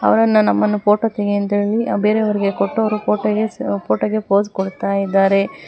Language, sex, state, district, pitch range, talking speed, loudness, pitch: Kannada, female, Karnataka, Bangalore, 195-215 Hz, 150 wpm, -17 LUFS, 205 Hz